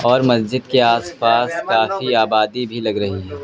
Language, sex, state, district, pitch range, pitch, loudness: Hindi, male, Uttar Pradesh, Lucknow, 110-125 Hz, 115 Hz, -17 LUFS